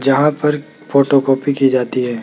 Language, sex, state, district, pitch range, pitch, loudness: Hindi, male, Rajasthan, Jaipur, 130-145 Hz, 140 Hz, -15 LUFS